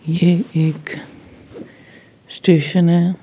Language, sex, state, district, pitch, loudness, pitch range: Hindi, female, Bihar, West Champaran, 170 Hz, -16 LUFS, 160-175 Hz